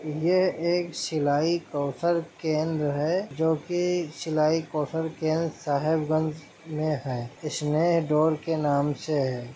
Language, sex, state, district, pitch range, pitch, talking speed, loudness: Hindi, male, Jharkhand, Sahebganj, 150-165 Hz, 155 Hz, 125 wpm, -26 LUFS